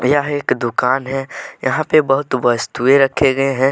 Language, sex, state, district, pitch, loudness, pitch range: Hindi, male, Jharkhand, Deoghar, 135 Hz, -16 LUFS, 130-140 Hz